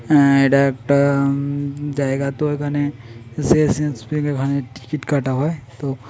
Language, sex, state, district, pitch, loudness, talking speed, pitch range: Bengali, male, West Bengal, Paschim Medinipur, 140 Hz, -19 LUFS, 110 wpm, 135-145 Hz